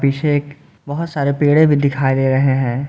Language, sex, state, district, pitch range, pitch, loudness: Hindi, male, Jharkhand, Garhwa, 135-145 Hz, 140 Hz, -16 LUFS